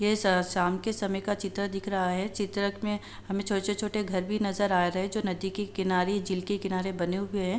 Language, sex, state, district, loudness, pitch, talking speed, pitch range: Hindi, female, Uttar Pradesh, Jalaun, -29 LUFS, 195 Hz, 230 wpm, 185-205 Hz